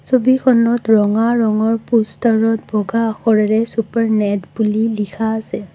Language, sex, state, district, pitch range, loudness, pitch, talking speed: Assamese, female, Assam, Kamrup Metropolitan, 215-230 Hz, -16 LUFS, 225 Hz, 115 wpm